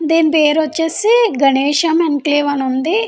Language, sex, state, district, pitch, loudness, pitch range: Telugu, female, Andhra Pradesh, Anantapur, 315 Hz, -14 LUFS, 290-330 Hz